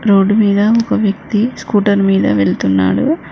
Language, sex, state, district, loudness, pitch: Telugu, female, Telangana, Mahabubabad, -13 LUFS, 200 Hz